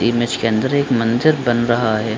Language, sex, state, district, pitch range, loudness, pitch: Hindi, male, Bihar, Supaul, 115-125 Hz, -17 LUFS, 120 Hz